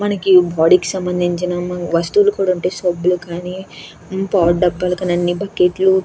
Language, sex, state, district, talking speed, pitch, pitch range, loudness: Telugu, female, Andhra Pradesh, Krishna, 130 wpm, 180 Hz, 175-190 Hz, -16 LUFS